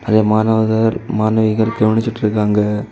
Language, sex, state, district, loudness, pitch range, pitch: Tamil, male, Tamil Nadu, Kanyakumari, -15 LUFS, 105-110 Hz, 110 Hz